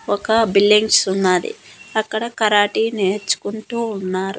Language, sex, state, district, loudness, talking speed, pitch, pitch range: Telugu, female, Andhra Pradesh, Annamaya, -17 LUFS, 95 wpm, 210 Hz, 195-220 Hz